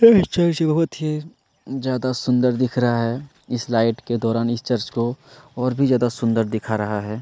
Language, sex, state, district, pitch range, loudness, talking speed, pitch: Hindi, male, Chhattisgarh, Kabirdham, 115-135 Hz, -21 LUFS, 185 wpm, 125 Hz